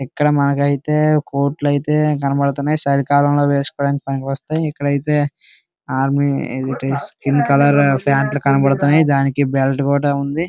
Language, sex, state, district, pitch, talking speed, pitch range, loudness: Telugu, male, Andhra Pradesh, Srikakulam, 140 Hz, 120 wpm, 140-145 Hz, -17 LUFS